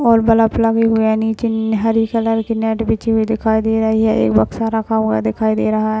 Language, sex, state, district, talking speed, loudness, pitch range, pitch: Hindi, female, Maharashtra, Chandrapur, 240 wpm, -16 LUFS, 220-225 Hz, 220 Hz